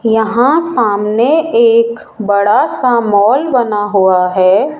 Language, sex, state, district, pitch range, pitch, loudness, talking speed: Hindi, male, Rajasthan, Jaipur, 205-250 Hz, 230 Hz, -11 LUFS, 115 wpm